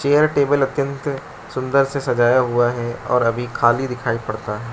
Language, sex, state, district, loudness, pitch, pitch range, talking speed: Hindi, male, Arunachal Pradesh, Lower Dibang Valley, -19 LUFS, 125 Hz, 120-140 Hz, 175 wpm